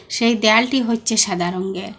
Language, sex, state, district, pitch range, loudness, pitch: Bengali, female, Assam, Hailakandi, 185-230 Hz, -17 LUFS, 220 Hz